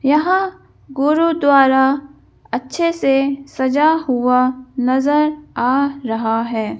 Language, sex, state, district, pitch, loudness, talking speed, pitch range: Hindi, female, Madhya Pradesh, Bhopal, 275 Hz, -17 LUFS, 90 wpm, 255-300 Hz